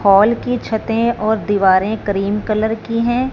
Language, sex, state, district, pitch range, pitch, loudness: Hindi, female, Punjab, Fazilka, 205-230 Hz, 220 Hz, -16 LUFS